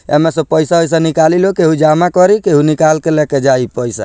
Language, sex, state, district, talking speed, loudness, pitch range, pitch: Bhojpuri, male, Bihar, Muzaffarpur, 205 wpm, -11 LUFS, 150-165 Hz, 160 Hz